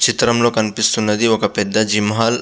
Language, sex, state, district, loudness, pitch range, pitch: Telugu, male, Andhra Pradesh, Visakhapatnam, -16 LUFS, 105-115 Hz, 110 Hz